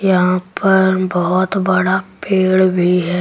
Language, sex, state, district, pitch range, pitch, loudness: Hindi, female, Delhi, New Delhi, 180-190 Hz, 185 Hz, -15 LUFS